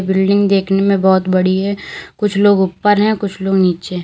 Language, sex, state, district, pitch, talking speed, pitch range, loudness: Hindi, female, Uttar Pradesh, Lalitpur, 195 Hz, 195 wpm, 185-200 Hz, -14 LUFS